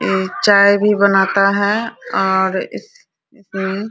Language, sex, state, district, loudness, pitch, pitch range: Hindi, female, Bihar, Araria, -15 LUFS, 200 Hz, 195-210 Hz